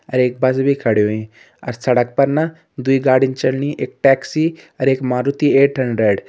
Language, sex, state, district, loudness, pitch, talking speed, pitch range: Hindi, male, Uttarakhand, Tehri Garhwal, -17 LUFS, 130 Hz, 200 wpm, 125-140 Hz